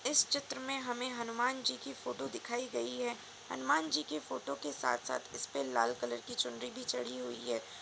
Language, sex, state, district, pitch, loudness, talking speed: Hindi, female, Uttar Pradesh, Budaun, 140 Hz, -37 LUFS, 190 wpm